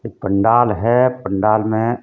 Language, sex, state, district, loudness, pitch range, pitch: Hindi, male, Jharkhand, Deoghar, -16 LUFS, 105-120 Hz, 115 Hz